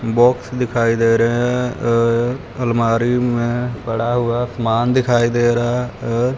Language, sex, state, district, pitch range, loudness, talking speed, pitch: Hindi, male, Punjab, Fazilka, 115-125 Hz, -17 LUFS, 140 wpm, 120 Hz